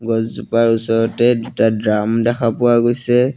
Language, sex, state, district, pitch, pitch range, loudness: Assamese, male, Assam, Sonitpur, 115 Hz, 115-120 Hz, -16 LUFS